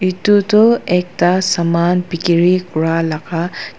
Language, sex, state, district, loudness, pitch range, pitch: Nagamese, female, Nagaland, Dimapur, -15 LUFS, 170-185 Hz, 180 Hz